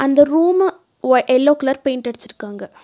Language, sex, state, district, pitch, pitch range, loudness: Tamil, female, Tamil Nadu, Nilgiris, 270 Hz, 245-295 Hz, -16 LUFS